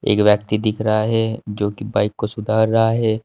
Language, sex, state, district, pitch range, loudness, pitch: Hindi, male, Uttar Pradesh, Saharanpur, 105-110 Hz, -19 LUFS, 110 Hz